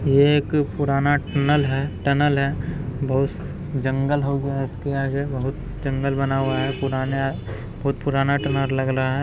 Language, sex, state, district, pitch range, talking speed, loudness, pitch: Hindi, male, Bihar, Araria, 135-140 Hz, 170 wpm, -22 LUFS, 135 Hz